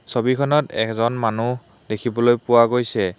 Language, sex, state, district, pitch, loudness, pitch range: Assamese, male, Assam, Hailakandi, 120 Hz, -19 LUFS, 115-125 Hz